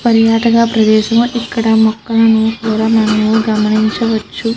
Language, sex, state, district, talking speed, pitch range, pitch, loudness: Telugu, female, Andhra Pradesh, Krishna, 90 wpm, 220-230 Hz, 225 Hz, -12 LUFS